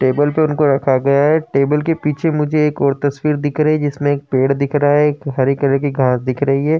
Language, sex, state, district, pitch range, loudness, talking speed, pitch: Hindi, male, Uttar Pradesh, Jyotiba Phule Nagar, 140-150 Hz, -16 LUFS, 265 wpm, 145 Hz